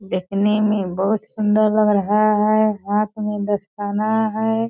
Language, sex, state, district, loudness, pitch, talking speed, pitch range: Hindi, female, Bihar, Purnia, -19 LUFS, 210 Hz, 140 wpm, 205-215 Hz